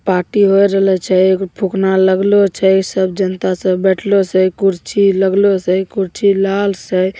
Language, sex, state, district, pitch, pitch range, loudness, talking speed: Hindi, female, Bihar, Begusarai, 190 Hz, 185-195 Hz, -14 LUFS, 185 wpm